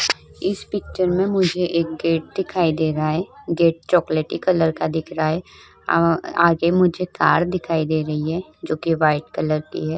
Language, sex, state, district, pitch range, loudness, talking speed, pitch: Hindi, female, Uttar Pradesh, Budaun, 160-180 Hz, -20 LUFS, 185 wpm, 165 Hz